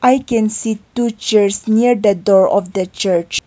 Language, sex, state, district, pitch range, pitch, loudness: English, female, Nagaland, Kohima, 195-235 Hz, 215 Hz, -15 LUFS